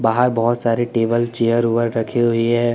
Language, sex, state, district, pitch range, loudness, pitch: Hindi, male, Chandigarh, Chandigarh, 115-120 Hz, -18 LUFS, 115 Hz